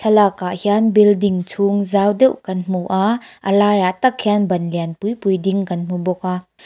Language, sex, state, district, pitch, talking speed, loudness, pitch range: Mizo, female, Mizoram, Aizawl, 195 Hz, 200 wpm, -17 LUFS, 185-205 Hz